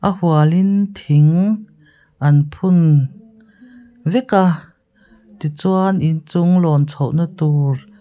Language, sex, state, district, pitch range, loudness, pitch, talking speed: Mizo, female, Mizoram, Aizawl, 150-200 Hz, -16 LUFS, 175 Hz, 95 wpm